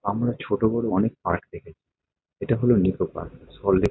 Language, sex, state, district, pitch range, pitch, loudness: Bengali, male, West Bengal, Kolkata, 85-115 Hz, 100 Hz, -24 LUFS